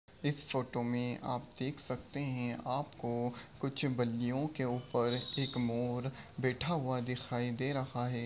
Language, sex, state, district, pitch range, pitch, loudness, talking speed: Hindi, male, Uttar Pradesh, Budaun, 120-135 Hz, 125 Hz, -37 LUFS, 160 wpm